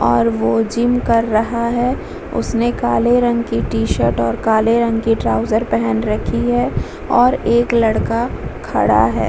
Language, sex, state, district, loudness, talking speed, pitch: Hindi, female, Bihar, Vaishali, -16 LUFS, 155 wpm, 220 Hz